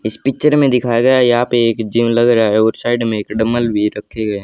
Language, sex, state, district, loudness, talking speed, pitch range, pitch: Hindi, male, Haryana, Rohtak, -14 LUFS, 270 wpm, 110-120 Hz, 115 Hz